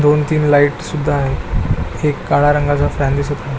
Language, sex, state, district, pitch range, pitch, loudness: Marathi, male, Maharashtra, Pune, 140-150 Hz, 145 Hz, -16 LUFS